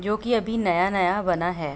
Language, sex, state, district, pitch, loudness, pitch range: Hindi, female, Uttar Pradesh, Budaun, 185 Hz, -23 LUFS, 175-215 Hz